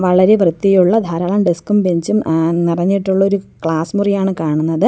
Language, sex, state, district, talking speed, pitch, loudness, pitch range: Malayalam, female, Kerala, Kollam, 160 wpm, 185 Hz, -15 LUFS, 170-200 Hz